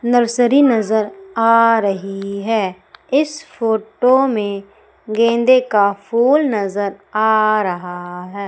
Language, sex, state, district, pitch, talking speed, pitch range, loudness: Hindi, female, Madhya Pradesh, Umaria, 220 Hz, 105 wpm, 200-245 Hz, -16 LUFS